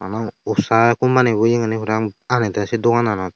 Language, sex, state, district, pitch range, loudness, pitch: Chakma, male, Tripura, Unakoti, 110-120 Hz, -18 LUFS, 115 Hz